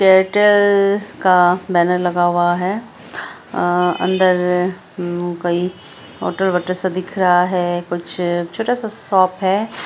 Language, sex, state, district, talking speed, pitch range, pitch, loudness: Hindi, female, Bihar, Araria, 120 wpm, 175-190 Hz, 180 Hz, -17 LUFS